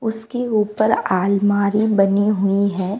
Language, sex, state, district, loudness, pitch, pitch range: Hindi, female, Bihar, West Champaran, -18 LUFS, 205 Hz, 195-220 Hz